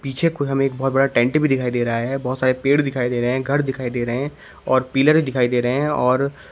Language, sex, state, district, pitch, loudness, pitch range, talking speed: Hindi, male, Uttar Pradesh, Shamli, 135 Hz, -20 LUFS, 125-140 Hz, 305 wpm